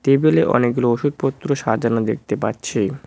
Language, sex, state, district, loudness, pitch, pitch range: Bengali, male, West Bengal, Cooch Behar, -19 LUFS, 125 Hz, 115-140 Hz